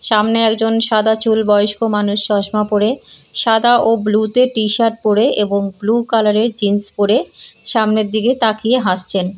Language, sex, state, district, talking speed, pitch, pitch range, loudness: Bengali, female, West Bengal, Purulia, 160 wpm, 215 Hz, 210-225 Hz, -15 LUFS